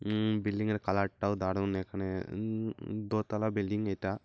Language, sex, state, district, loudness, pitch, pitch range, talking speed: Bengali, male, West Bengal, Malda, -33 LUFS, 105 Hz, 100-110 Hz, 170 wpm